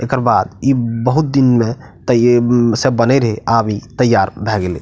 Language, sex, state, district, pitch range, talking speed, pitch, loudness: Maithili, male, Bihar, Madhepura, 110-125 Hz, 210 wpm, 120 Hz, -14 LUFS